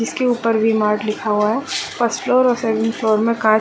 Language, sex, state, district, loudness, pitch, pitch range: Hindi, female, Uttarakhand, Uttarkashi, -18 LUFS, 225 Hz, 215-240 Hz